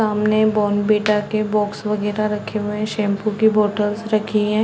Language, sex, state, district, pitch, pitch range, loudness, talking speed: Hindi, female, Chhattisgarh, Bilaspur, 210 Hz, 210-215 Hz, -19 LUFS, 180 wpm